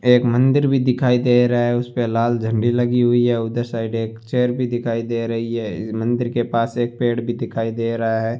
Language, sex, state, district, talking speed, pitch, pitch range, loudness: Hindi, male, Rajasthan, Bikaner, 240 wpm, 120 Hz, 115-120 Hz, -19 LUFS